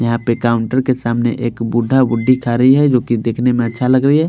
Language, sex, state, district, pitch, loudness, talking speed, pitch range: Hindi, male, Bihar, Patna, 120 Hz, -15 LUFS, 250 wpm, 115-130 Hz